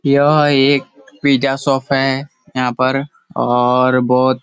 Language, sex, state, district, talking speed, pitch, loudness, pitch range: Hindi, male, Bihar, Kishanganj, 150 wpm, 135 Hz, -15 LUFS, 130-140 Hz